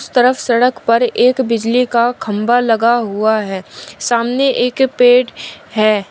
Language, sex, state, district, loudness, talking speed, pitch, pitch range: Hindi, female, Uttar Pradesh, Shamli, -14 LUFS, 135 wpm, 240 Hz, 225-250 Hz